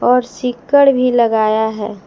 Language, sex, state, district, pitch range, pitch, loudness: Hindi, female, Jharkhand, Palamu, 220-250 Hz, 240 Hz, -14 LUFS